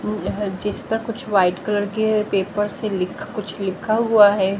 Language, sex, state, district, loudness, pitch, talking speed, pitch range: Hindi, female, Haryana, Jhajjar, -20 LUFS, 205 Hz, 170 wpm, 195-215 Hz